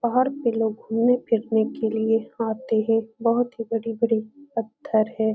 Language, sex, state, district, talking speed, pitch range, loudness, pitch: Hindi, female, Uttar Pradesh, Etah, 155 wpm, 220-235 Hz, -24 LUFS, 225 Hz